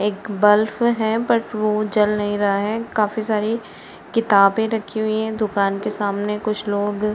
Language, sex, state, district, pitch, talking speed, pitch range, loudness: Hindi, female, Uttar Pradesh, Varanasi, 215 Hz, 175 wpm, 205-220 Hz, -20 LUFS